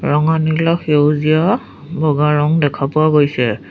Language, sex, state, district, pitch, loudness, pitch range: Assamese, female, Assam, Sonitpur, 150 Hz, -15 LUFS, 145-160 Hz